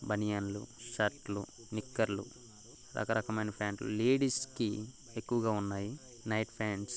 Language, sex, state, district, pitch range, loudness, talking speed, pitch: Telugu, male, Andhra Pradesh, Guntur, 105-120 Hz, -36 LUFS, 140 wpm, 110 Hz